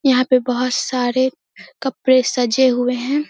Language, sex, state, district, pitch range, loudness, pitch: Hindi, female, Bihar, Samastipur, 250-265 Hz, -17 LUFS, 255 Hz